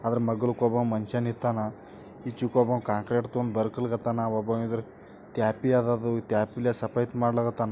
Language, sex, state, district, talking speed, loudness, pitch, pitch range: Kannada, male, Karnataka, Bijapur, 140 wpm, -28 LUFS, 120 Hz, 110-120 Hz